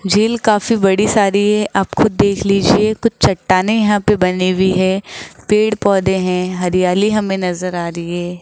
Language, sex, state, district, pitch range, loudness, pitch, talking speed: Hindi, female, Rajasthan, Jaipur, 185-210 Hz, -15 LUFS, 195 Hz, 180 wpm